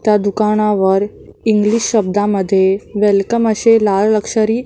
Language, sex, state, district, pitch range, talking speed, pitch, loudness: Marathi, female, Maharashtra, Mumbai Suburban, 200-220 Hz, 115 wpm, 210 Hz, -14 LUFS